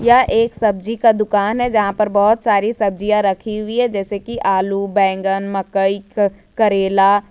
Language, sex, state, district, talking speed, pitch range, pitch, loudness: Hindi, female, Jharkhand, Ranchi, 165 wpm, 195-220 Hz, 205 Hz, -17 LUFS